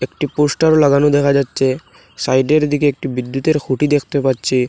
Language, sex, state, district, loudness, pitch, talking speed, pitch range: Bengali, male, Assam, Hailakandi, -15 LUFS, 140 Hz, 155 wpm, 130-150 Hz